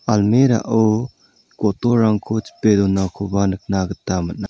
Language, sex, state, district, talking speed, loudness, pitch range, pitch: Garo, male, Meghalaya, South Garo Hills, 95 wpm, -18 LUFS, 95-110 Hz, 105 Hz